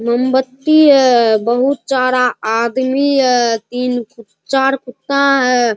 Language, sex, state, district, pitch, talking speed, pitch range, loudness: Hindi, male, Bihar, Araria, 255 Hz, 105 wpm, 235-270 Hz, -14 LUFS